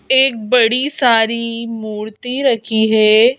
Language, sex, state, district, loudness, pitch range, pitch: Hindi, female, Madhya Pradesh, Bhopal, -15 LUFS, 220-250 Hz, 230 Hz